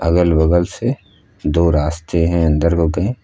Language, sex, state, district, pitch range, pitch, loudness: Hindi, male, Uttar Pradesh, Lucknow, 80-95 Hz, 85 Hz, -16 LUFS